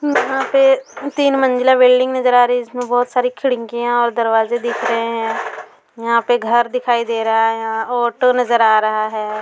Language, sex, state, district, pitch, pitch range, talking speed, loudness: Hindi, female, Bihar, Saran, 240 Hz, 225-250 Hz, 195 wpm, -16 LUFS